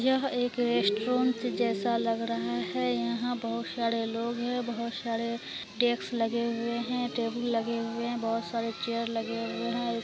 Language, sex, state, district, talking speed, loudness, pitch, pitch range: Hindi, female, Bihar, Araria, 160 wpm, -30 LUFS, 230 Hz, 225-240 Hz